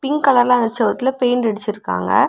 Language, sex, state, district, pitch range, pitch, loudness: Tamil, female, Tamil Nadu, Kanyakumari, 225-265 Hz, 245 Hz, -17 LUFS